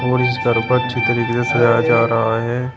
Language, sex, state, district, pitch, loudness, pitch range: Hindi, male, Uttar Pradesh, Shamli, 120 Hz, -16 LUFS, 115-125 Hz